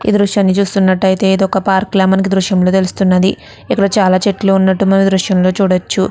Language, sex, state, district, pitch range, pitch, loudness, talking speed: Telugu, female, Andhra Pradesh, Guntur, 190-195 Hz, 190 Hz, -12 LUFS, 215 wpm